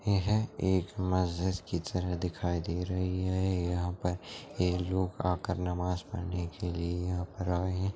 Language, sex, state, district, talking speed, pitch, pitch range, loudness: Hindi, male, Chhattisgarh, Rajnandgaon, 165 wpm, 90 Hz, 90-95 Hz, -33 LUFS